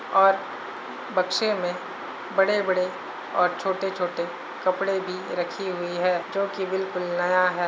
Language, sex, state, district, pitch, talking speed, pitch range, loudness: Hindi, male, Uttar Pradesh, Hamirpur, 185 Hz, 125 wpm, 180-195 Hz, -26 LUFS